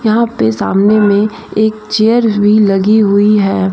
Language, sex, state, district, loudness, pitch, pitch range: Hindi, female, Jharkhand, Deoghar, -11 LUFS, 210 Hz, 200-220 Hz